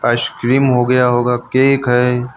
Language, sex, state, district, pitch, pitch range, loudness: Hindi, male, Uttar Pradesh, Lucknow, 125 Hz, 125-130 Hz, -14 LUFS